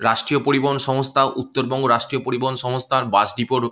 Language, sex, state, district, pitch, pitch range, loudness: Bengali, male, West Bengal, Malda, 130 Hz, 120-135 Hz, -20 LUFS